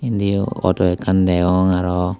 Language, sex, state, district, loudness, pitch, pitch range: Chakma, male, Tripura, Dhalai, -17 LUFS, 90 Hz, 90-100 Hz